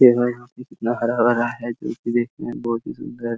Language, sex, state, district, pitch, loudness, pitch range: Hindi, male, Bihar, Araria, 120 Hz, -22 LUFS, 115-120 Hz